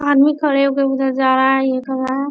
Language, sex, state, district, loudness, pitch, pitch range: Hindi, female, Bihar, Bhagalpur, -16 LUFS, 270 Hz, 265-280 Hz